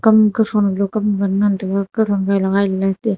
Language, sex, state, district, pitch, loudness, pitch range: Wancho, female, Arunachal Pradesh, Longding, 200 Hz, -17 LUFS, 195-215 Hz